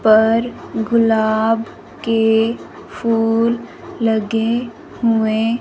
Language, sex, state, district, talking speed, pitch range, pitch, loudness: Hindi, female, Punjab, Fazilka, 65 wpm, 220-230 Hz, 225 Hz, -17 LUFS